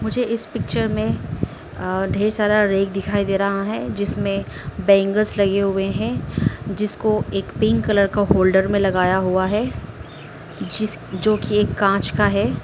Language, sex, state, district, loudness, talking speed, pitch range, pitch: Hindi, female, Arunachal Pradesh, Lower Dibang Valley, -20 LUFS, 150 wpm, 195-210 Hz, 200 Hz